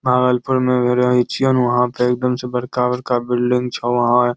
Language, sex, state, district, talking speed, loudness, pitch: Angika, male, Bihar, Bhagalpur, 205 wpm, -17 LUFS, 125 Hz